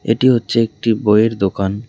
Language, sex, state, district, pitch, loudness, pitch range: Bengali, male, West Bengal, Cooch Behar, 110 Hz, -15 LUFS, 100-115 Hz